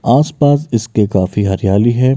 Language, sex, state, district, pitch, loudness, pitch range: Maithili, male, Bihar, Muzaffarpur, 115 Hz, -14 LUFS, 100-140 Hz